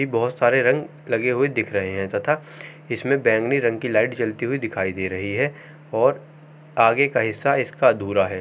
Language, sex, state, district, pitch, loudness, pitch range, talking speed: Hindi, male, Uttar Pradesh, Jalaun, 120 Hz, -21 LUFS, 105-140 Hz, 200 wpm